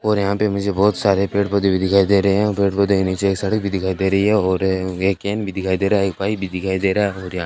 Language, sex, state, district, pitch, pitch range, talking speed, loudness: Hindi, male, Rajasthan, Bikaner, 100 Hz, 95-100 Hz, 315 wpm, -18 LUFS